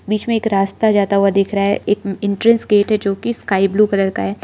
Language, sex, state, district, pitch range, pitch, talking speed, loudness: Hindi, female, Arunachal Pradesh, Lower Dibang Valley, 195-215 Hz, 200 Hz, 270 wpm, -16 LUFS